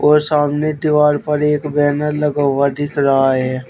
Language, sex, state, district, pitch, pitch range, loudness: Hindi, male, Uttar Pradesh, Shamli, 150 Hz, 140-150 Hz, -16 LUFS